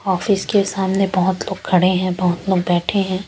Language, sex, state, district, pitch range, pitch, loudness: Hindi, female, Chandigarh, Chandigarh, 185-195 Hz, 190 Hz, -18 LUFS